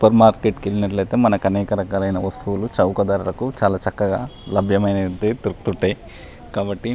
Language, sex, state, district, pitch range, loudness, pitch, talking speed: Telugu, male, Telangana, Nalgonda, 95-110 Hz, -20 LUFS, 100 Hz, 105 wpm